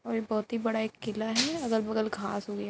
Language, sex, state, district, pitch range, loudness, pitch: Hindi, female, Uttar Pradesh, Etah, 215-230 Hz, -31 LUFS, 220 Hz